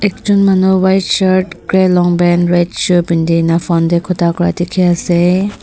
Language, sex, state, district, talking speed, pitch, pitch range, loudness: Nagamese, female, Nagaland, Dimapur, 180 wpm, 175 Hz, 175-190 Hz, -12 LUFS